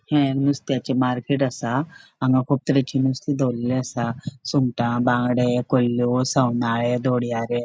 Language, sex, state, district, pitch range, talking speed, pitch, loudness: Konkani, female, Goa, North and South Goa, 120-135 Hz, 125 wpm, 125 Hz, -22 LUFS